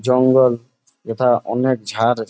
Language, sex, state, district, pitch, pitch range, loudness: Bengali, male, West Bengal, Jalpaiguri, 125 Hz, 115-130 Hz, -17 LUFS